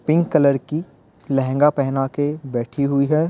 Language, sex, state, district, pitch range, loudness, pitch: Hindi, male, Bihar, Patna, 135-155 Hz, -20 LUFS, 140 Hz